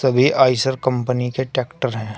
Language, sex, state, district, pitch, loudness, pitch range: Hindi, male, Uttar Pradesh, Shamli, 130 Hz, -19 LUFS, 125-130 Hz